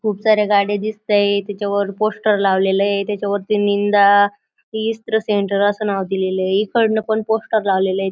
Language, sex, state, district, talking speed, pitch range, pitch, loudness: Marathi, female, Maharashtra, Aurangabad, 150 wpm, 200-215 Hz, 205 Hz, -17 LUFS